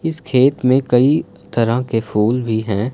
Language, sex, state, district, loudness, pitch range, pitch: Hindi, male, Punjab, Fazilka, -16 LUFS, 110-130 Hz, 125 Hz